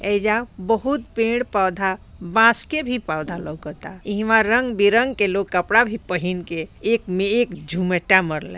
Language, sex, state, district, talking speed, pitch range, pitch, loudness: Bhojpuri, female, Bihar, Gopalganj, 155 wpm, 180-230 Hz, 205 Hz, -20 LUFS